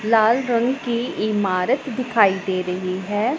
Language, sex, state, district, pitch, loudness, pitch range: Hindi, female, Punjab, Pathankot, 215 Hz, -20 LUFS, 190-240 Hz